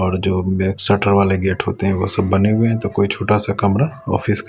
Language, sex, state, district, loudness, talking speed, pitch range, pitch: Hindi, male, Bihar, West Champaran, -17 LUFS, 240 wpm, 95-105 Hz, 100 Hz